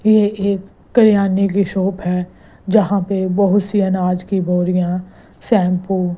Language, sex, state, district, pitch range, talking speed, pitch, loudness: Hindi, female, Gujarat, Gandhinagar, 180-200 Hz, 145 wpm, 195 Hz, -17 LUFS